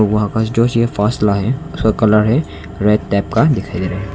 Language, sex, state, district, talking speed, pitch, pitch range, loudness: Hindi, male, Arunachal Pradesh, Longding, 130 wpm, 105 Hz, 100-115 Hz, -15 LUFS